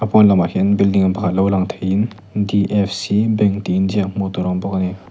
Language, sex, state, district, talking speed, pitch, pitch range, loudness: Mizo, male, Mizoram, Aizawl, 245 wpm, 100 Hz, 95-105 Hz, -17 LUFS